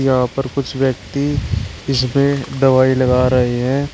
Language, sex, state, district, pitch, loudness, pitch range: Hindi, male, Uttar Pradesh, Shamli, 130 Hz, -16 LUFS, 125-135 Hz